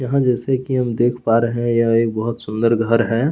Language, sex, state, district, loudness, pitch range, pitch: Hindi, male, Chhattisgarh, Kabirdham, -18 LUFS, 115-125 Hz, 115 Hz